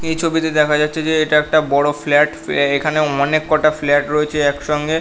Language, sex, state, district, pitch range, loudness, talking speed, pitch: Bengali, male, West Bengal, North 24 Parganas, 145-155 Hz, -16 LUFS, 215 wpm, 150 Hz